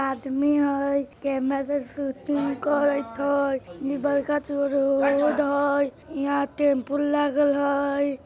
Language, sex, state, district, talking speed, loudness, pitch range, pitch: Bajjika, female, Bihar, Vaishali, 110 wpm, -24 LUFS, 275-285 Hz, 280 Hz